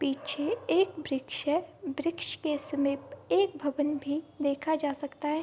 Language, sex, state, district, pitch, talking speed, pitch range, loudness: Hindi, female, Bihar, Bhagalpur, 295 Hz, 155 wpm, 285-315 Hz, -30 LUFS